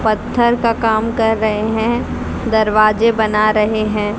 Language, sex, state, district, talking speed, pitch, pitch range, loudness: Hindi, female, Haryana, Rohtak, 145 wpm, 220 Hz, 215-230 Hz, -15 LUFS